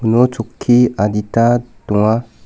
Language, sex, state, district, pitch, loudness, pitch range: Garo, male, Meghalaya, South Garo Hills, 115 Hz, -15 LUFS, 105-120 Hz